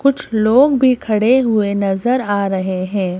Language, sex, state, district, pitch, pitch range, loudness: Hindi, female, Madhya Pradesh, Bhopal, 215 Hz, 195-255 Hz, -15 LUFS